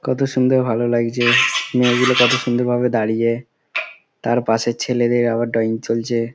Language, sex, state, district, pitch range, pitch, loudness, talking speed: Bengali, male, West Bengal, Kolkata, 115-125 Hz, 120 Hz, -18 LUFS, 140 wpm